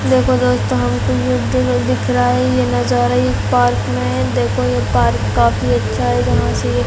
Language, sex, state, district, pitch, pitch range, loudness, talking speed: Hindi, female, Chhattisgarh, Raigarh, 120 Hz, 110-125 Hz, -15 LUFS, 185 wpm